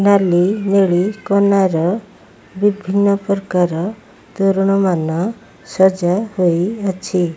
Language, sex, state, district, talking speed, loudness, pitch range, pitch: Odia, female, Odisha, Malkangiri, 75 wpm, -16 LUFS, 180-200 Hz, 195 Hz